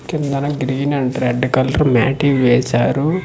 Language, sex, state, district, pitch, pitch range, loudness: Telugu, male, Andhra Pradesh, Manyam, 135 Hz, 130-145 Hz, -16 LUFS